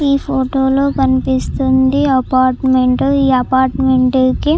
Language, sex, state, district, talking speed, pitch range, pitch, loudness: Telugu, female, Andhra Pradesh, Chittoor, 130 wpm, 260-275 Hz, 260 Hz, -13 LUFS